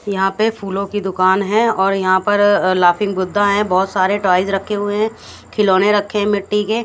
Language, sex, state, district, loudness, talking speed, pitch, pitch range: Hindi, female, Haryana, Jhajjar, -16 LUFS, 190 wpm, 200 Hz, 190-205 Hz